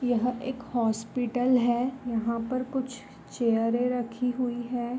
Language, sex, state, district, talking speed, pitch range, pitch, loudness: Hindi, female, Goa, North and South Goa, 130 wpm, 240-250 Hz, 245 Hz, -28 LUFS